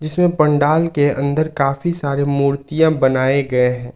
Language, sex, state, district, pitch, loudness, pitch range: Hindi, male, Jharkhand, Ranchi, 140 Hz, -16 LUFS, 140-155 Hz